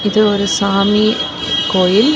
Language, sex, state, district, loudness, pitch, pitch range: Tamil, female, Tamil Nadu, Kanyakumari, -14 LUFS, 200 Hz, 185-210 Hz